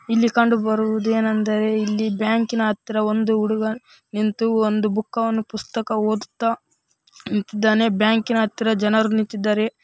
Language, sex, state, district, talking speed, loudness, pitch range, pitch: Kannada, female, Karnataka, Raichur, 110 wpm, -21 LUFS, 215-225 Hz, 220 Hz